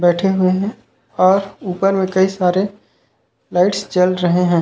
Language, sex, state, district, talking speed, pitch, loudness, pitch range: Chhattisgarhi, male, Chhattisgarh, Raigarh, 155 wpm, 185 Hz, -17 LUFS, 180-195 Hz